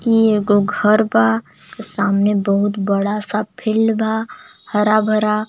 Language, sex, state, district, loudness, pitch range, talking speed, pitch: Bhojpuri, male, Jharkhand, Palamu, -17 LUFS, 205-220 Hz, 130 wpm, 210 Hz